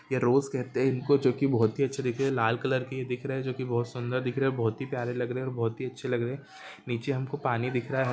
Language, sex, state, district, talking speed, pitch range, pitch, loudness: Hindi, male, Jharkhand, Jamtara, 315 wpm, 125-135 Hz, 130 Hz, -29 LUFS